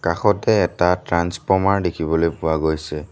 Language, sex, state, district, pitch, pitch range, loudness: Assamese, male, Assam, Sonitpur, 85 Hz, 80-90 Hz, -19 LUFS